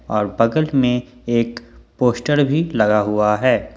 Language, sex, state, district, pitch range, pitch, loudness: Hindi, male, Jharkhand, Ranchi, 105-130 Hz, 120 Hz, -18 LUFS